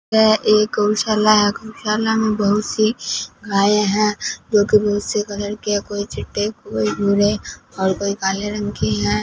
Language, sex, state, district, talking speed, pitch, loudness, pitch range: Hindi, female, Punjab, Fazilka, 175 wpm, 210 Hz, -18 LUFS, 205-215 Hz